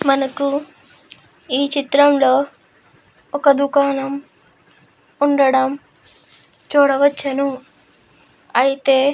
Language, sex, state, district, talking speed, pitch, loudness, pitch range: Telugu, female, Andhra Pradesh, Krishna, 60 wpm, 280 Hz, -17 LUFS, 270-285 Hz